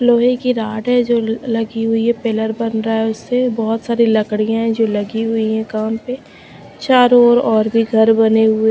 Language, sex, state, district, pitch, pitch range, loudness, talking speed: Hindi, female, Bihar, Kaimur, 225 Hz, 220-235 Hz, -15 LUFS, 220 wpm